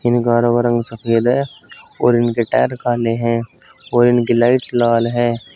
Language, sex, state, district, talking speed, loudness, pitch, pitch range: Hindi, male, Uttar Pradesh, Saharanpur, 175 wpm, -16 LUFS, 120 Hz, 115-120 Hz